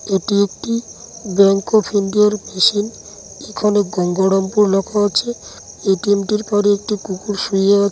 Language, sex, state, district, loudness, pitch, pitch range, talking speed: Bengali, male, West Bengal, Dakshin Dinajpur, -17 LUFS, 205 Hz, 195-210 Hz, 160 wpm